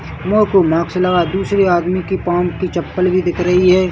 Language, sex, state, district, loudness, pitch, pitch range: Hindi, male, Chhattisgarh, Bilaspur, -15 LUFS, 180 Hz, 175-185 Hz